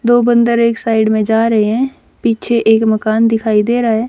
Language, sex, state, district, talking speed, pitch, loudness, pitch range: Hindi, female, Haryana, Rohtak, 220 wpm, 225 Hz, -13 LUFS, 220-235 Hz